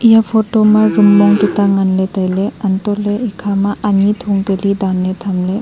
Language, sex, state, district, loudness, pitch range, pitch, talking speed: Wancho, female, Arunachal Pradesh, Longding, -13 LUFS, 195-210 Hz, 200 Hz, 215 wpm